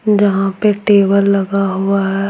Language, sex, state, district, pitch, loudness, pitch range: Hindi, female, Bihar, Patna, 200 Hz, -14 LUFS, 195-205 Hz